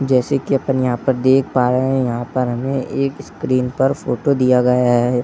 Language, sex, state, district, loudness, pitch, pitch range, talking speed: Hindi, male, Bihar, Muzaffarpur, -17 LUFS, 130 Hz, 125-135 Hz, 240 wpm